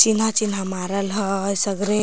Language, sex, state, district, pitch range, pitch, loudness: Magahi, female, Jharkhand, Palamu, 195-215 Hz, 200 Hz, -21 LUFS